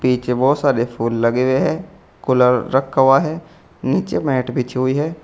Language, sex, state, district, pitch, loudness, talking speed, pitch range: Hindi, male, Uttar Pradesh, Saharanpur, 130 Hz, -17 LUFS, 185 wpm, 125-150 Hz